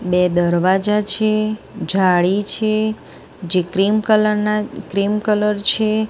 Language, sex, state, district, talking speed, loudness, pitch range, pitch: Gujarati, female, Gujarat, Gandhinagar, 120 wpm, -17 LUFS, 185-215 Hz, 210 Hz